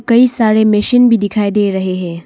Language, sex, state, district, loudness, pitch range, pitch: Hindi, female, Arunachal Pradesh, Longding, -12 LUFS, 200-230 Hz, 210 Hz